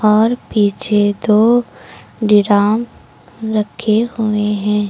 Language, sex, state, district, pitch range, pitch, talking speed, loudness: Hindi, female, Uttar Pradesh, Lucknow, 210-225 Hz, 215 Hz, 85 wpm, -15 LUFS